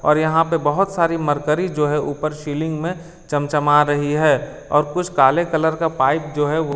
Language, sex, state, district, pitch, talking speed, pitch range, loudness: Hindi, male, Delhi, New Delhi, 155 Hz, 205 wpm, 145-165 Hz, -19 LUFS